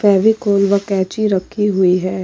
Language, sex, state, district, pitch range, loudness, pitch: Hindi, female, Uttar Pradesh, Jalaun, 190-210 Hz, -15 LUFS, 200 Hz